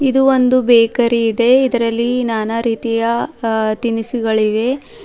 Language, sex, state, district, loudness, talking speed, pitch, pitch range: Kannada, female, Karnataka, Bidar, -15 LUFS, 105 wpm, 235 Hz, 225-255 Hz